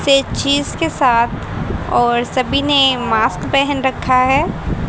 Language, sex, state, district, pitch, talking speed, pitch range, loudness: Hindi, female, Haryana, Rohtak, 260 Hz, 135 wpm, 240-275 Hz, -15 LUFS